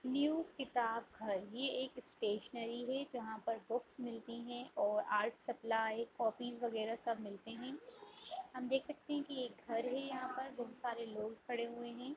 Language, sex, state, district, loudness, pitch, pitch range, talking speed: Kumaoni, female, Uttarakhand, Uttarkashi, -41 LUFS, 240 Hz, 230-260 Hz, 175 wpm